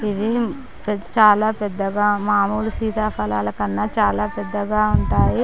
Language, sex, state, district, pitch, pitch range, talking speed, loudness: Telugu, female, Andhra Pradesh, Chittoor, 210 Hz, 200-215 Hz, 100 wpm, -20 LUFS